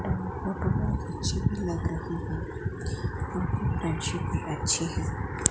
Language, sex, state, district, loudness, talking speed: Hindi, female, Gujarat, Gandhinagar, -30 LUFS, 100 wpm